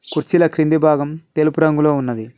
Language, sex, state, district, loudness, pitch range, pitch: Telugu, male, Telangana, Mahabubabad, -16 LUFS, 145-160 Hz, 155 Hz